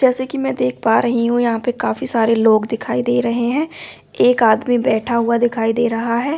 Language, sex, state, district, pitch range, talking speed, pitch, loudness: Hindi, female, Delhi, New Delhi, 225-245 Hz, 225 wpm, 235 Hz, -17 LUFS